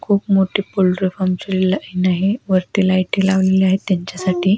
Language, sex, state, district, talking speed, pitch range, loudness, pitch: Marathi, female, Maharashtra, Pune, 145 wpm, 185-195 Hz, -17 LUFS, 190 Hz